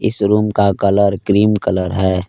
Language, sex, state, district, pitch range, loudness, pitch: Hindi, male, Jharkhand, Palamu, 95-105 Hz, -15 LUFS, 100 Hz